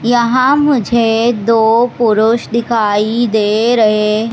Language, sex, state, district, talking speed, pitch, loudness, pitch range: Hindi, male, Madhya Pradesh, Katni, 95 wpm, 230 Hz, -12 LUFS, 220-240 Hz